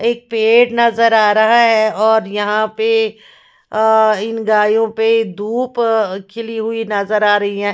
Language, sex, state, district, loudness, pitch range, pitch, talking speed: Hindi, female, Punjab, Fazilka, -14 LUFS, 210-225 Hz, 220 Hz, 165 wpm